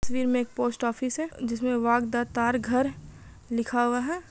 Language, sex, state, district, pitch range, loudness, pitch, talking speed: Hindi, female, Bihar, Madhepura, 240-255 Hz, -27 LUFS, 245 Hz, 165 wpm